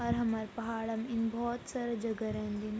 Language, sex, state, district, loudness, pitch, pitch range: Garhwali, female, Uttarakhand, Tehri Garhwal, -35 LUFS, 225 Hz, 220-235 Hz